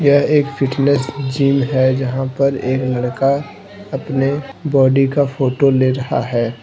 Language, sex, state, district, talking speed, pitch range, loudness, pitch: Hindi, male, Jharkhand, Deoghar, 135 wpm, 130-140 Hz, -16 LUFS, 135 Hz